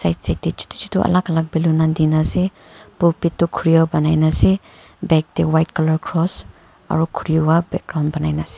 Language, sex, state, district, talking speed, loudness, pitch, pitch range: Nagamese, female, Nagaland, Kohima, 190 wpm, -18 LUFS, 160 Hz, 155-170 Hz